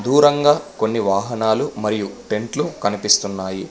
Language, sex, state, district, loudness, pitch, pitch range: Telugu, male, Telangana, Hyderabad, -19 LUFS, 110 Hz, 100-135 Hz